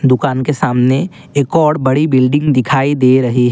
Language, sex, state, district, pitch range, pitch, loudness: Hindi, male, Assam, Kamrup Metropolitan, 130-150 Hz, 135 Hz, -13 LUFS